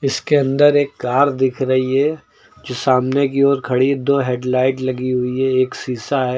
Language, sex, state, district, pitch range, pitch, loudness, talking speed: Hindi, male, Uttar Pradesh, Lucknow, 130-140 Hz, 130 Hz, -17 LUFS, 190 wpm